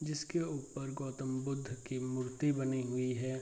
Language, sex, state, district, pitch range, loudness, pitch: Hindi, male, Bihar, Bhagalpur, 130-140 Hz, -38 LUFS, 135 Hz